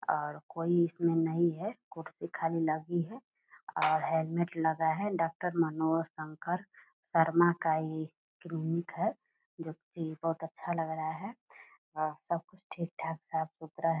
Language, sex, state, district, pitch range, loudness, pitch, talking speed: Hindi, female, Bihar, Purnia, 160-170 Hz, -33 LUFS, 165 Hz, 145 wpm